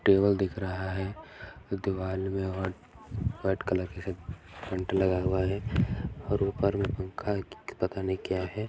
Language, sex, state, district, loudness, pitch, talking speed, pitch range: Hindi, male, Chhattisgarh, Balrampur, -31 LUFS, 95 Hz, 160 wpm, 95-100 Hz